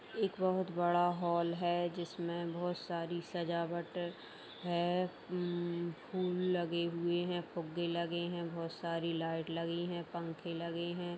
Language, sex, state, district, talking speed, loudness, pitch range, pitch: Hindi, female, Uttar Pradesh, Jalaun, 145 wpm, -37 LUFS, 170-175 Hz, 175 Hz